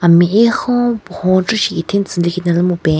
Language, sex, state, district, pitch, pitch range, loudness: Rengma, female, Nagaland, Kohima, 185 Hz, 170-220 Hz, -14 LUFS